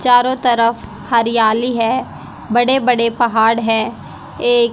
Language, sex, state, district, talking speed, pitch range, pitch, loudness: Hindi, female, Haryana, Jhajjar, 115 wpm, 230-250 Hz, 235 Hz, -15 LUFS